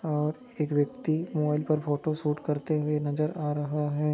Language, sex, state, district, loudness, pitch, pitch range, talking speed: Hindi, male, Maharashtra, Nagpur, -29 LUFS, 150 Hz, 150-155 Hz, 190 wpm